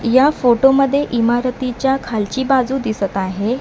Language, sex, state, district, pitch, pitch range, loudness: Marathi, female, Maharashtra, Mumbai Suburban, 250 Hz, 230-270 Hz, -16 LUFS